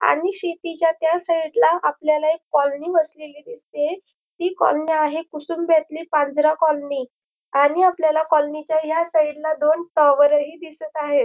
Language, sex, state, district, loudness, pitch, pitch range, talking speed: Marathi, female, Maharashtra, Dhule, -20 LUFS, 315 Hz, 300-330 Hz, 150 wpm